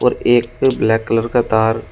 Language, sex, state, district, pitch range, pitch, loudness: Hindi, male, Uttar Pradesh, Shamli, 110-120 Hz, 115 Hz, -16 LUFS